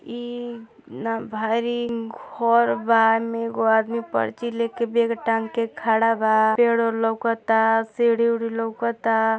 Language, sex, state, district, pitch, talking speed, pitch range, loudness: Hindi, female, Uttar Pradesh, Gorakhpur, 230 Hz, 140 wpm, 225-235 Hz, -22 LUFS